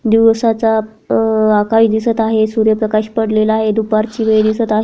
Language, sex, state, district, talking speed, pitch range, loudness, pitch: Marathi, female, Maharashtra, Sindhudurg, 160 wpm, 215-225 Hz, -14 LUFS, 220 Hz